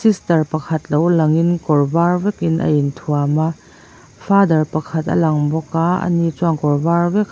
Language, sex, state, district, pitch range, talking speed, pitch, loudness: Mizo, female, Mizoram, Aizawl, 150-170 Hz, 170 wpm, 160 Hz, -17 LUFS